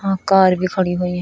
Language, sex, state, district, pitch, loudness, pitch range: Hindi, female, Uttar Pradesh, Shamli, 185 Hz, -16 LUFS, 180-190 Hz